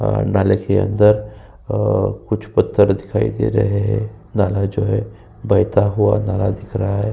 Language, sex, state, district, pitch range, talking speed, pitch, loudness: Hindi, male, Uttar Pradesh, Jyotiba Phule Nagar, 100-110 Hz, 170 wpm, 105 Hz, -18 LUFS